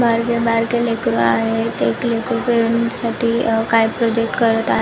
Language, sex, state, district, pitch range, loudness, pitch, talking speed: Marathi, female, Maharashtra, Nagpur, 225-235 Hz, -17 LUFS, 230 Hz, 125 wpm